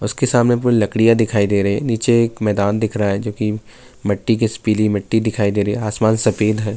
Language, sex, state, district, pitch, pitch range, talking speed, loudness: Urdu, male, Bihar, Saharsa, 110 Hz, 105-115 Hz, 240 wpm, -17 LUFS